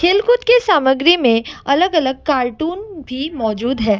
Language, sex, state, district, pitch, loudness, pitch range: Hindi, female, Assam, Kamrup Metropolitan, 295 Hz, -15 LUFS, 255-360 Hz